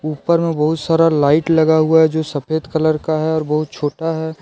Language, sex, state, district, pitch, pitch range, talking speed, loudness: Hindi, male, Jharkhand, Deoghar, 160 Hz, 155-160 Hz, 230 wpm, -16 LUFS